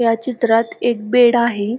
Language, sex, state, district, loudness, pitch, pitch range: Marathi, female, Maharashtra, Pune, -16 LUFS, 235 Hz, 225-240 Hz